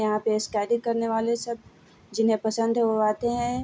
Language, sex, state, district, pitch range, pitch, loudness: Hindi, female, Bihar, Vaishali, 215-235 Hz, 225 Hz, -25 LUFS